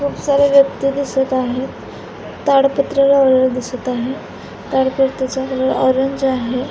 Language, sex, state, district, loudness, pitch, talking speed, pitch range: Marathi, female, Maharashtra, Pune, -16 LUFS, 265 Hz, 115 wpm, 260-275 Hz